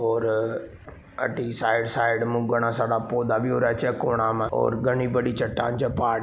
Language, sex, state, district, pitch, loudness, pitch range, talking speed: Marwari, male, Rajasthan, Nagaur, 115 Hz, -24 LUFS, 115-120 Hz, 210 wpm